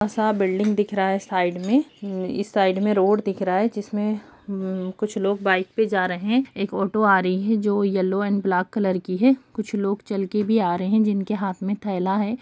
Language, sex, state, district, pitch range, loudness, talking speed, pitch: Hindi, female, Bihar, Gaya, 190-210 Hz, -22 LUFS, 225 wpm, 200 Hz